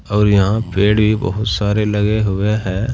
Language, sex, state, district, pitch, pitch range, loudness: Hindi, male, Uttar Pradesh, Saharanpur, 105 Hz, 100-110 Hz, -16 LUFS